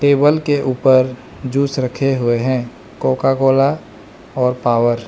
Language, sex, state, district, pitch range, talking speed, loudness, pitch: Hindi, male, Arunachal Pradesh, Lower Dibang Valley, 120-135 Hz, 130 wpm, -16 LUFS, 130 Hz